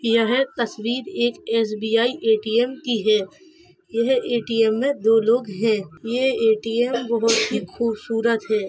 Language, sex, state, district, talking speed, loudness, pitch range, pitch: Hindi, female, Uttar Pradesh, Hamirpur, 130 wpm, -21 LUFS, 220-240 Hz, 230 Hz